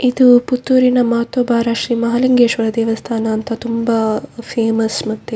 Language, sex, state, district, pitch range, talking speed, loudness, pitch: Kannada, female, Karnataka, Dakshina Kannada, 225-245 Hz, 125 wpm, -15 LUFS, 235 Hz